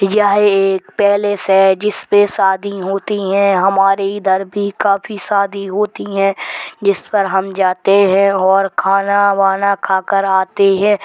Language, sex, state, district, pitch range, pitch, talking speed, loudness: Hindi, female, Uttar Pradesh, Hamirpur, 195-200 Hz, 195 Hz, 140 wpm, -14 LUFS